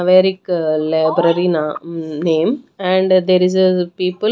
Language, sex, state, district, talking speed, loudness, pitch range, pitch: English, female, Haryana, Rohtak, 140 wpm, -16 LUFS, 165-185 Hz, 180 Hz